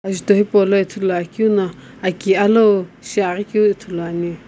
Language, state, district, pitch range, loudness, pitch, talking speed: Sumi, Nagaland, Kohima, 180-205 Hz, -17 LUFS, 195 Hz, 145 wpm